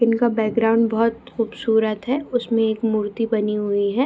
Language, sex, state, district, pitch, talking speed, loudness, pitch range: Hindi, female, Bihar, Saharsa, 225 Hz, 160 wpm, -21 LUFS, 220-230 Hz